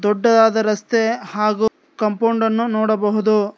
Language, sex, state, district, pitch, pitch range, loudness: Kannada, male, Karnataka, Bangalore, 220 Hz, 215-230 Hz, -18 LUFS